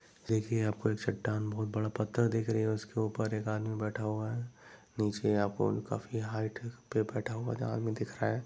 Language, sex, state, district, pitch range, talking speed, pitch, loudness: Hindi, male, Chhattisgarh, Raigarh, 105-115 Hz, 205 wpm, 110 Hz, -34 LUFS